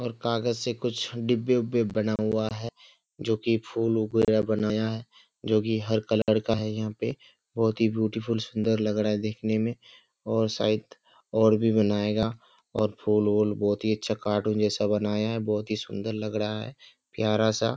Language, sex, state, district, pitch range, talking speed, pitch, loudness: Hindi, male, Bihar, Kishanganj, 105-115 Hz, 180 wpm, 110 Hz, -27 LUFS